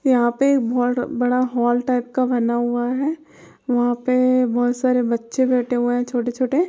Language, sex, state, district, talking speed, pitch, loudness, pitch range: Hindi, female, Bihar, Lakhisarai, 170 wpm, 245 Hz, -20 LUFS, 240-255 Hz